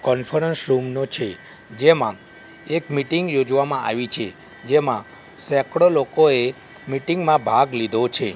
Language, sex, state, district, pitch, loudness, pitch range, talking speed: Gujarati, male, Gujarat, Gandhinagar, 140 Hz, -20 LUFS, 130-160 Hz, 130 wpm